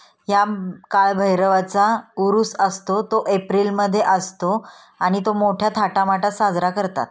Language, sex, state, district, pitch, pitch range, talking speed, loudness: Marathi, female, Maharashtra, Pune, 200 Hz, 190-210 Hz, 125 wpm, -19 LUFS